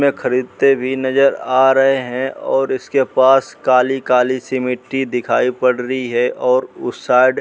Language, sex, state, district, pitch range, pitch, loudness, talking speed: Hindi, male, Uttar Pradesh, Muzaffarnagar, 125-135 Hz, 130 Hz, -16 LUFS, 170 wpm